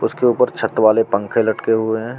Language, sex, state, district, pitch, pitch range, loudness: Hindi, male, Delhi, New Delhi, 115 Hz, 110-120 Hz, -17 LUFS